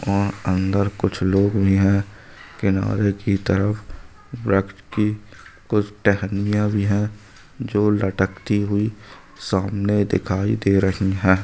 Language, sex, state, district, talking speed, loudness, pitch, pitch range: Hindi, male, Andhra Pradesh, Anantapur, 120 wpm, -21 LUFS, 100 Hz, 95-105 Hz